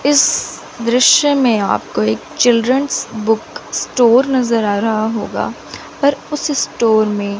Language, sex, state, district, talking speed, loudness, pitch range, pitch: Hindi, female, Chandigarh, Chandigarh, 130 wpm, -15 LUFS, 220-285 Hz, 240 Hz